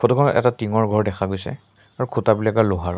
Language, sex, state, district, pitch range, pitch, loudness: Assamese, male, Assam, Sonitpur, 105-120 Hz, 110 Hz, -20 LUFS